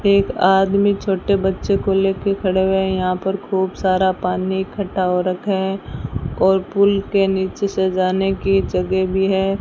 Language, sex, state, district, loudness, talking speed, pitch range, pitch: Hindi, female, Rajasthan, Bikaner, -18 LUFS, 175 wpm, 185-195 Hz, 190 Hz